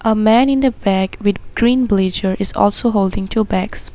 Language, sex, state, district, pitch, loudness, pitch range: English, female, Assam, Sonitpur, 205 Hz, -16 LUFS, 195-235 Hz